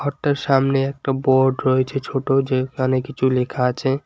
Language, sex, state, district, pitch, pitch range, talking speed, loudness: Bengali, male, West Bengal, Alipurduar, 135 Hz, 130-135 Hz, 150 wpm, -20 LUFS